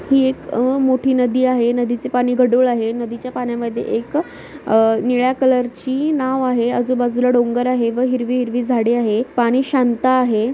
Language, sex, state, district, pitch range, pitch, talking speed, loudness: Marathi, female, Maharashtra, Nagpur, 240-255 Hz, 250 Hz, 165 wpm, -17 LUFS